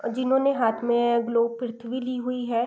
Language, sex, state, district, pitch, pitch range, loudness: Hindi, female, Bihar, East Champaran, 240 Hz, 235-250 Hz, -25 LUFS